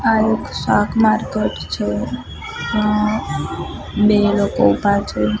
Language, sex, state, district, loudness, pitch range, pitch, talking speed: Gujarati, female, Gujarat, Gandhinagar, -18 LUFS, 200-220 Hz, 210 Hz, 110 wpm